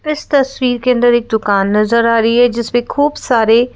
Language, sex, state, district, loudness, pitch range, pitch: Hindi, female, Madhya Pradesh, Bhopal, -13 LUFS, 230-255 Hz, 240 Hz